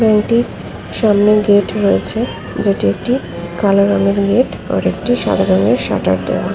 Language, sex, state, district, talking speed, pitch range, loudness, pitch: Bengali, female, West Bengal, Paschim Medinipur, 110 wpm, 200-215 Hz, -15 LUFS, 205 Hz